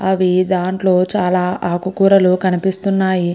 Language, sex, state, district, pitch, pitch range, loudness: Telugu, female, Andhra Pradesh, Chittoor, 185 Hz, 180-190 Hz, -15 LUFS